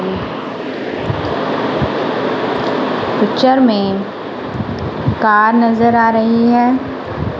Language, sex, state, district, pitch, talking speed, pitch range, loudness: Hindi, female, Punjab, Kapurthala, 230 Hz, 55 wpm, 215-240 Hz, -15 LUFS